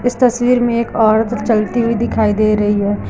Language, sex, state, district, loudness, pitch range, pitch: Hindi, female, Uttar Pradesh, Lucknow, -15 LUFS, 210-240 Hz, 225 Hz